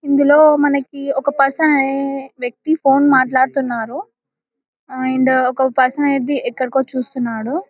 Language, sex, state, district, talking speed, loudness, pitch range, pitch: Telugu, female, Telangana, Karimnagar, 125 wpm, -16 LUFS, 260-285 Hz, 275 Hz